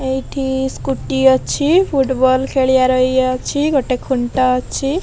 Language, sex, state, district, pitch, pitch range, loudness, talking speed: Odia, female, Odisha, Khordha, 260 Hz, 255-270 Hz, -16 LUFS, 130 wpm